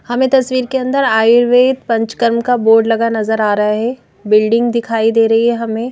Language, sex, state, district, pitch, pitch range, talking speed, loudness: Hindi, female, Madhya Pradesh, Bhopal, 230 Hz, 225-245 Hz, 195 wpm, -13 LUFS